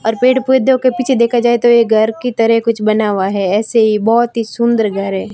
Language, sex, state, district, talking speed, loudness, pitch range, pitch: Hindi, female, Rajasthan, Barmer, 260 wpm, -13 LUFS, 215-240 Hz, 230 Hz